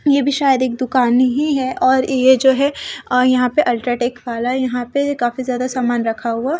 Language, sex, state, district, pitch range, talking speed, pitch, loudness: Hindi, female, Odisha, Nuapada, 245-270 Hz, 210 wpm, 255 Hz, -16 LUFS